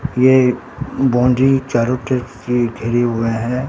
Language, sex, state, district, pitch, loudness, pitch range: Hindi, male, Bihar, Katihar, 125 Hz, -16 LUFS, 120-130 Hz